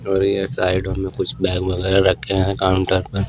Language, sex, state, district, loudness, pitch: Hindi, male, Maharashtra, Washim, -19 LUFS, 95 Hz